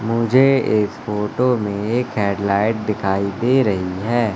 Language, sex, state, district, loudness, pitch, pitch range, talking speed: Hindi, male, Madhya Pradesh, Katni, -19 LUFS, 110 Hz, 100-120 Hz, 150 wpm